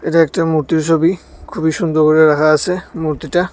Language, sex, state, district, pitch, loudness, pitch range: Bengali, male, Tripura, West Tripura, 160 Hz, -14 LUFS, 155-170 Hz